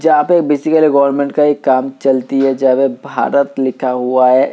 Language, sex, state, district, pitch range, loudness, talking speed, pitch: Hindi, male, Uttar Pradesh, Hamirpur, 130-145 Hz, -13 LUFS, 200 wpm, 135 Hz